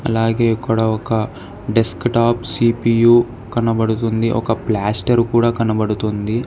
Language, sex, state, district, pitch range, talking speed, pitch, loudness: Telugu, male, Telangana, Hyderabad, 110-115 Hz, 100 wpm, 115 Hz, -17 LUFS